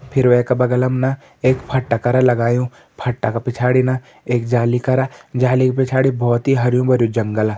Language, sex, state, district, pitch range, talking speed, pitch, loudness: Hindi, male, Uttarakhand, Tehri Garhwal, 120-130 Hz, 175 wpm, 125 Hz, -17 LUFS